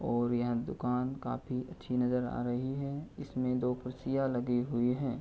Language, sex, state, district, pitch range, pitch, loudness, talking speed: Hindi, male, Uttar Pradesh, Hamirpur, 120-130 Hz, 125 Hz, -34 LUFS, 175 wpm